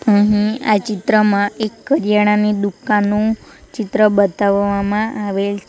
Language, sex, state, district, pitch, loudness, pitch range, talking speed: Gujarati, female, Gujarat, Valsad, 210 Hz, -16 LUFS, 200-215 Hz, 105 wpm